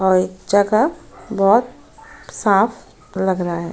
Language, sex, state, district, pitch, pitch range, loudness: Hindi, female, Uttar Pradesh, Jyotiba Phule Nagar, 195 Hz, 185-210 Hz, -18 LUFS